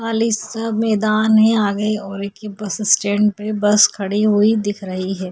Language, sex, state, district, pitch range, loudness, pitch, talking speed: Hindi, female, Chhattisgarh, Korba, 205-215 Hz, -17 LUFS, 210 Hz, 190 wpm